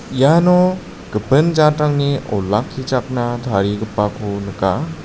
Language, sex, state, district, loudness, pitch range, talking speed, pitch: Garo, male, Meghalaya, South Garo Hills, -17 LUFS, 105-150 Hz, 70 wpm, 125 Hz